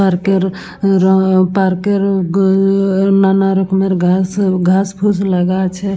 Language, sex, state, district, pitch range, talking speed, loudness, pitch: Bengali, female, West Bengal, Purulia, 185-195 Hz, 150 wpm, -13 LUFS, 190 Hz